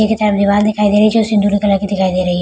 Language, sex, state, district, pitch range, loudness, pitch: Hindi, female, Bihar, Araria, 200-215 Hz, -13 LUFS, 205 Hz